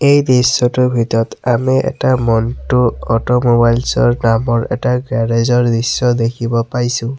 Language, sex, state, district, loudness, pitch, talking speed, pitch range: Assamese, male, Assam, Sonitpur, -14 LUFS, 120 Hz, 125 wpm, 115-125 Hz